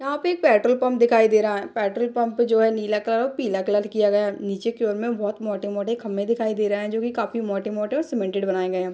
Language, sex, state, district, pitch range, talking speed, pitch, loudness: Hindi, female, Bihar, Darbhanga, 205-235 Hz, 275 wpm, 215 Hz, -22 LUFS